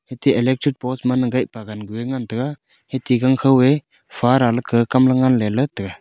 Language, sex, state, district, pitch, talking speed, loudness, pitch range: Wancho, male, Arunachal Pradesh, Longding, 130 Hz, 200 wpm, -18 LUFS, 120-130 Hz